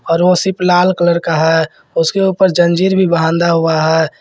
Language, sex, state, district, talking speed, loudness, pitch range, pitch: Hindi, male, Jharkhand, Garhwa, 200 wpm, -13 LUFS, 165-185 Hz, 170 Hz